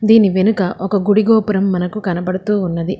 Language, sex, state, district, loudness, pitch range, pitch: Telugu, female, Telangana, Hyderabad, -15 LUFS, 185-210 Hz, 195 Hz